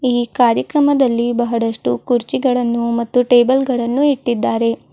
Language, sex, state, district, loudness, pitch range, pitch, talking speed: Kannada, female, Karnataka, Bidar, -16 LUFS, 235-255 Hz, 240 Hz, 95 wpm